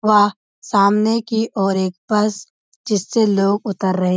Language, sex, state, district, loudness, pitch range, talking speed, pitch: Hindi, female, Uttarakhand, Uttarkashi, -18 LUFS, 195-215 Hz, 160 wpm, 205 Hz